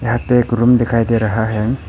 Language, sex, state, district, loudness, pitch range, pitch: Hindi, male, Arunachal Pradesh, Papum Pare, -15 LUFS, 115-120 Hz, 115 Hz